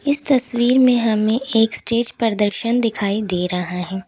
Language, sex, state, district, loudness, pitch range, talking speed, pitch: Hindi, female, Uttar Pradesh, Lalitpur, -17 LUFS, 205-240 Hz, 160 wpm, 225 Hz